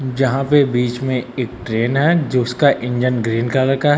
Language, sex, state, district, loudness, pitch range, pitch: Hindi, male, Uttar Pradesh, Lucknow, -17 LUFS, 125-135 Hz, 125 Hz